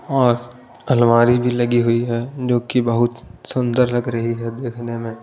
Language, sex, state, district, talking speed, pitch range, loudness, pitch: Hindi, male, Punjab, Pathankot, 170 wpm, 115-125 Hz, -19 LUFS, 120 Hz